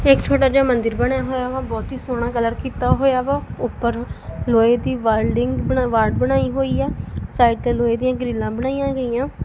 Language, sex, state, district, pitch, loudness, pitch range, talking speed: Punjabi, female, Punjab, Kapurthala, 250 Hz, -19 LUFS, 235-265 Hz, 185 wpm